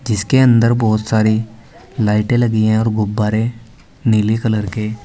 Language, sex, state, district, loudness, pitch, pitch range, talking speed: Hindi, male, Uttar Pradesh, Saharanpur, -15 LUFS, 110 Hz, 110-115 Hz, 155 wpm